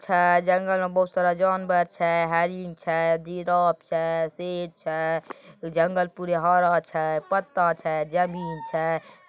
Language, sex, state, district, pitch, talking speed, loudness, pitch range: Maithili, male, Bihar, Begusarai, 175 Hz, 140 wpm, -24 LUFS, 165-180 Hz